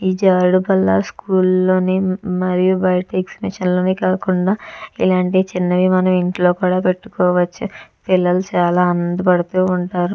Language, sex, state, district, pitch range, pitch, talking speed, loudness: Telugu, female, Andhra Pradesh, Chittoor, 180-185 Hz, 185 Hz, 130 wpm, -16 LUFS